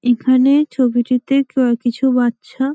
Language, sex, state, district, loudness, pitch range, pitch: Bengali, female, West Bengal, Malda, -16 LUFS, 245-270 Hz, 255 Hz